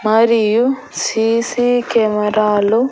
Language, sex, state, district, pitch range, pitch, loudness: Telugu, female, Andhra Pradesh, Annamaya, 215-240 Hz, 225 Hz, -15 LUFS